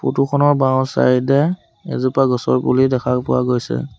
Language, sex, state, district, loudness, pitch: Assamese, male, Assam, Sonitpur, -17 LUFS, 130 Hz